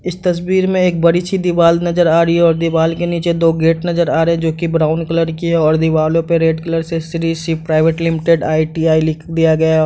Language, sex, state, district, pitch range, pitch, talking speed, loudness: Hindi, male, Bihar, Madhepura, 160-170 Hz, 165 Hz, 255 wpm, -14 LUFS